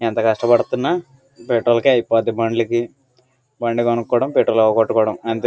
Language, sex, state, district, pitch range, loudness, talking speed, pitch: Telugu, male, Andhra Pradesh, Guntur, 115-125 Hz, -18 LUFS, 110 wpm, 120 Hz